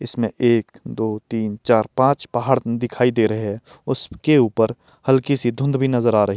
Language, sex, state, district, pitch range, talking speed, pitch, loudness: Hindi, male, Himachal Pradesh, Shimla, 110-130 Hz, 200 wpm, 120 Hz, -19 LUFS